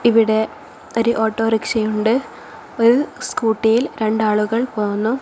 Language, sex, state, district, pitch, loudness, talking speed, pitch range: Malayalam, female, Kerala, Kozhikode, 225 Hz, -18 LUFS, 80 wpm, 220-235 Hz